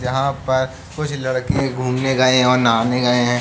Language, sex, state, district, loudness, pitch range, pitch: Hindi, male, Uttar Pradesh, Jalaun, -18 LUFS, 125-135 Hz, 130 Hz